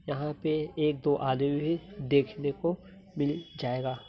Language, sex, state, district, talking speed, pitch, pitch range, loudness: Hindi, male, Bihar, Muzaffarpur, 145 wpm, 145 Hz, 140-165 Hz, -30 LUFS